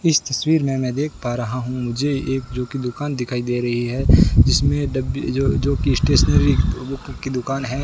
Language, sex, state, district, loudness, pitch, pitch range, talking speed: Hindi, male, Rajasthan, Bikaner, -20 LUFS, 130 Hz, 125-140 Hz, 200 wpm